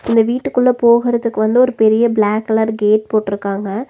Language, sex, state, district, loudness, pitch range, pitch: Tamil, female, Tamil Nadu, Nilgiris, -14 LUFS, 215-240 Hz, 220 Hz